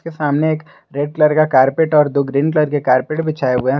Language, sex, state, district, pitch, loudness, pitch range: Hindi, male, Jharkhand, Garhwa, 150 Hz, -16 LUFS, 140-155 Hz